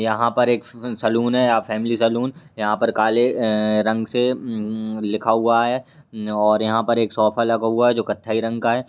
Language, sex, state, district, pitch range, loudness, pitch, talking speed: Hindi, male, Bihar, Lakhisarai, 110-120 Hz, -20 LUFS, 115 Hz, 225 wpm